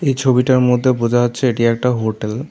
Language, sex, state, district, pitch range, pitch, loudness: Bengali, male, Tripura, South Tripura, 115-130 Hz, 125 Hz, -16 LUFS